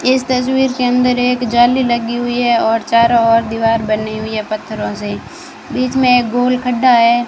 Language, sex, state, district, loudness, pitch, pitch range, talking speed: Hindi, female, Rajasthan, Bikaner, -14 LUFS, 240 Hz, 225-250 Hz, 190 wpm